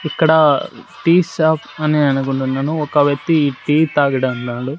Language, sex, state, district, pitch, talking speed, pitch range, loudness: Telugu, male, Andhra Pradesh, Sri Satya Sai, 150 Hz, 115 wpm, 135-160 Hz, -16 LUFS